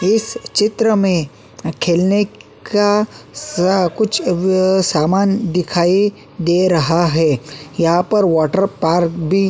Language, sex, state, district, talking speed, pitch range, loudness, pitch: Hindi, male, Uttarakhand, Tehri Garhwal, 120 wpm, 170-205 Hz, -16 LUFS, 185 Hz